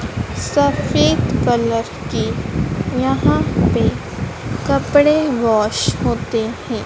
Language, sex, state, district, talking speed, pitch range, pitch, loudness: Hindi, female, Madhya Pradesh, Dhar, 80 wpm, 225-290 Hz, 235 Hz, -17 LUFS